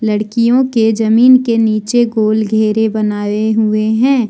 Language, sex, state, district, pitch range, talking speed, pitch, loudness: Hindi, male, Jharkhand, Deoghar, 215-235 Hz, 140 wpm, 220 Hz, -12 LUFS